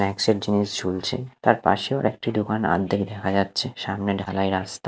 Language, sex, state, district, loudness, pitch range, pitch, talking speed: Bengali, male, Odisha, Nuapada, -24 LUFS, 95-110 Hz, 100 Hz, 170 wpm